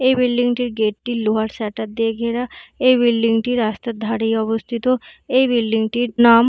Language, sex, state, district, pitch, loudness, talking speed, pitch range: Bengali, female, West Bengal, Jhargram, 230 Hz, -19 LUFS, 215 wpm, 225-245 Hz